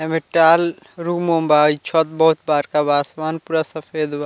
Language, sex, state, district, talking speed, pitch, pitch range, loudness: Bhojpuri, male, Bihar, Muzaffarpur, 210 wpm, 160 Hz, 150-165 Hz, -18 LUFS